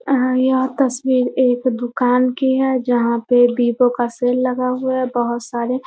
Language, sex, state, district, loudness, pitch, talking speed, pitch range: Hindi, female, Bihar, Muzaffarpur, -17 LUFS, 250 Hz, 175 wpm, 245-260 Hz